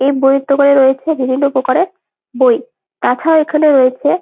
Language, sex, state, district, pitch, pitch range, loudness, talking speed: Bengali, female, West Bengal, Jalpaiguri, 275 Hz, 265-310 Hz, -12 LUFS, 140 wpm